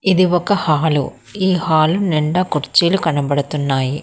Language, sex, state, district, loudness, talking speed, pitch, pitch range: Telugu, female, Telangana, Hyderabad, -16 LUFS, 120 wpm, 160 Hz, 145-185 Hz